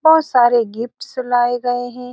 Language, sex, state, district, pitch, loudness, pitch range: Hindi, female, Bihar, Saran, 245 Hz, -17 LUFS, 240-250 Hz